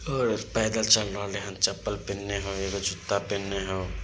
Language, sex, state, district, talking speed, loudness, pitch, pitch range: Magahi, male, Bihar, Samastipur, 90 wpm, -27 LUFS, 100 Hz, 95-100 Hz